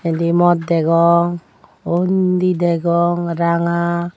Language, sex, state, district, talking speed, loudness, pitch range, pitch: Chakma, female, Tripura, Dhalai, 85 wpm, -16 LUFS, 170-175 Hz, 170 Hz